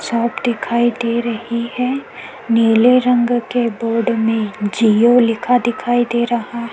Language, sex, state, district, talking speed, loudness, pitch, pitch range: Hindi, female, Chhattisgarh, Korba, 145 wpm, -16 LUFS, 235 Hz, 230-240 Hz